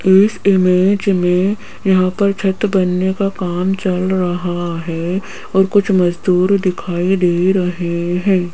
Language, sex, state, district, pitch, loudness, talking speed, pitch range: Hindi, female, Rajasthan, Jaipur, 185 Hz, -15 LUFS, 135 wpm, 180-195 Hz